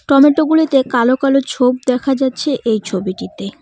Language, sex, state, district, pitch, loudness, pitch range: Bengali, female, West Bengal, Cooch Behar, 260 Hz, -15 LUFS, 245-275 Hz